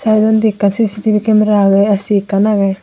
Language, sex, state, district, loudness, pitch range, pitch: Chakma, female, Tripura, Unakoti, -12 LUFS, 200-215 Hz, 210 Hz